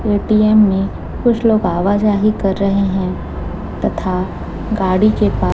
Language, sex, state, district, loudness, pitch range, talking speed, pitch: Hindi, female, Chhattisgarh, Raipur, -16 LUFS, 190-215 Hz, 140 wpm, 200 Hz